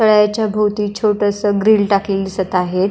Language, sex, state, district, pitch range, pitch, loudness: Marathi, female, Maharashtra, Pune, 195-210 Hz, 205 Hz, -16 LUFS